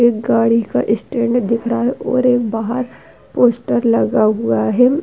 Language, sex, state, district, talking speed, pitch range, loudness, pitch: Hindi, female, Uttar Pradesh, Hamirpur, 165 wpm, 220-245 Hz, -16 LUFS, 230 Hz